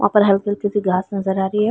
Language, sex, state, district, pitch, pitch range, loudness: Hindi, female, Uttar Pradesh, Varanasi, 200 Hz, 190-205 Hz, -19 LUFS